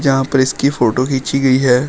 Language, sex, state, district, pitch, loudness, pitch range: Hindi, male, Uttar Pradesh, Shamli, 135 Hz, -14 LUFS, 130-135 Hz